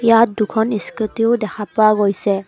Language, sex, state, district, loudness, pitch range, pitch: Assamese, female, Assam, Kamrup Metropolitan, -17 LUFS, 210-225 Hz, 215 Hz